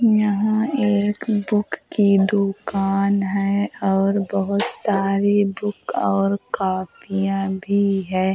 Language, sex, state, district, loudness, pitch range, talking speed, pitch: Hindi, female, Uttar Pradesh, Hamirpur, -20 LUFS, 195-205 Hz, 100 wpm, 200 Hz